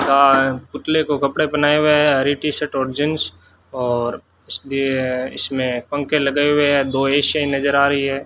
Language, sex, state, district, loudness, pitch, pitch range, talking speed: Hindi, male, Rajasthan, Bikaner, -18 LUFS, 140 Hz, 130-145 Hz, 180 wpm